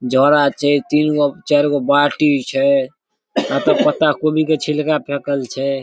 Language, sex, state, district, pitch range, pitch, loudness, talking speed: Maithili, male, Bihar, Darbhanga, 140-150 Hz, 145 Hz, -16 LUFS, 165 wpm